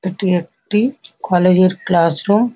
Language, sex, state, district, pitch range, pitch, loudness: Bengali, female, West Bengal, North 24 Parganas, 180-210 Hz, 185 Hz, -16 LUFS